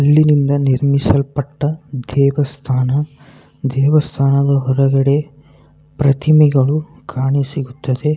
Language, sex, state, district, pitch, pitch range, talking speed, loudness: Kannada, male, Karnataka, Bellary, 140 Hz, 135-145 Hz, 65 wpm, -15 LUFS